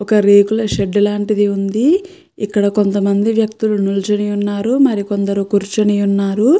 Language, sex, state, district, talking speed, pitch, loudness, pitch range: Telugu, female, Andhra Pradesh, Chittoor, 120 wpm, 205 Hz, -15 LUFS, 200-220 Hz